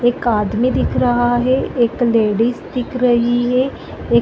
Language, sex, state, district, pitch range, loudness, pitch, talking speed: Hindi, female, Chhattisgarh, Bilaspur, 230-250 Hz, -16 LUFS, 240 Hz, 155 wpm